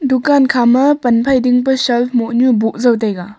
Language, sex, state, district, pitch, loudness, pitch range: Wancho, female, Arunachal Pradesh, Longding, 245 Hz, -13 LUFS, 235-265 Hz